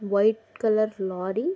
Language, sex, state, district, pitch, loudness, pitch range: Telugu, female, Andhra Pradesh, Guntur, 215 Hz, -25 LUFS, 195-220 Hz